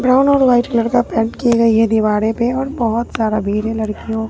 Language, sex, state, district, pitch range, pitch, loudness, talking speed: Hindi, female, Bihar, Katihar, 220-245 Hz, 230 Hz, -16 LUFS, 235 wpm